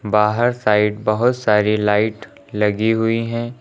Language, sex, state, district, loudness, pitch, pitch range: Hindi, male, Uttar Pradesh, Lucknow, -18 LUFS, 105 Hz, 105-115 Hz